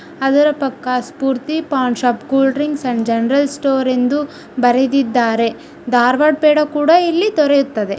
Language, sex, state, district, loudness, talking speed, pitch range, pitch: Kannada, female, Karnataka, Dharwad, -15 LUFS, 130 wpm, 250-295 Hz, 270 Hz